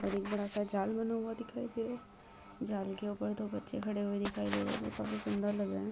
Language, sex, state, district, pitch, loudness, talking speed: Hindi, female, Uttar Pradesh, Ghazipur, 200 Hz, -37 LUFS, 265 wpm